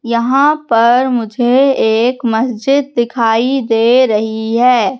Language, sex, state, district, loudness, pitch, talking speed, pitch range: Hindi, female, Madhya Pradesh, Katni, -12 LUFS, 240 Hz, 110 wpm, 230-260 Hz